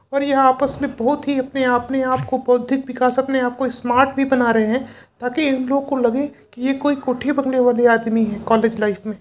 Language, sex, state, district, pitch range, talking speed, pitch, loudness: Hindi, male, Uttar Pradesh, Varanasi, 245-270 Hz, 235 wpm, 255 Hz, -19 LUFS